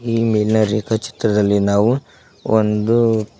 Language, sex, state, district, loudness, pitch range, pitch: Kannada, male, Karnataka, Koppal, -17 LUFS, 105-115 Hz, 110 Hz